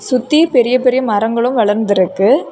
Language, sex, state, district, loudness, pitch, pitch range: Tamil, female, Tamil Nadu, Kanyakumari, -13 LUFS, 240 Hz, 210-255 Hz